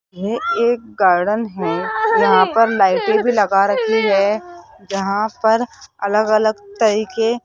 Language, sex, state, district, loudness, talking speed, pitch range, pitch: Hindi, female, Rajasthan, Jaipur, -17 LUFS, 145 wpm, 200-230 Hz, 215 Hz